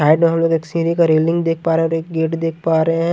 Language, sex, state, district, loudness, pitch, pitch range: Hindi, male, Haryana, Jhajjar, -17 LUFS, 165 Hz, 160-165 Hz